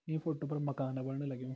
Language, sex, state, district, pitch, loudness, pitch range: Garhwali, male, Uttarakhand, Tehri Garhwal, 140 Hz, -38 LUFS, 130-150 Hz